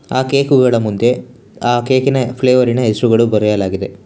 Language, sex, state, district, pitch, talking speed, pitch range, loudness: Kannada, male, Karnataka, Bangalore, 120 Hz, 135 wpm, 110-130 Hz, -14 LUFS